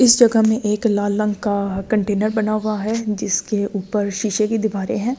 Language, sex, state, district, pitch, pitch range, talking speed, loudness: Hindi, female, Delhi, New Delhi, 215 Hz, 205-220 Hz, 195 wpm, -19 LUFS